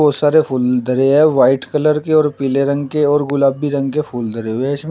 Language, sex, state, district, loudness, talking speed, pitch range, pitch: Hindi, male, Uttar Pradesh, Shamli, -15 LUFS, 245 wpm, 130-150 Hz, 140 Hz